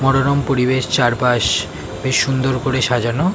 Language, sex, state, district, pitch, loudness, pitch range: Bengali, male, West Bengal, North 24 Parganas, 130 Hz, -17 LUFS, 120-135 Hz